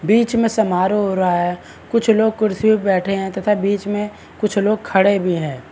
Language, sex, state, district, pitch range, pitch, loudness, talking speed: Hindi, male, Maharashtra, Chandrapur, 190-215 Hz, 205 Hz, -18 LUFS, 220 wpm